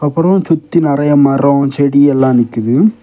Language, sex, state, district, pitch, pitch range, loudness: Tamil, male, Tamil Nadu, Kanyakumari, 140 Hz, 135-165 Hz, -11 LUFS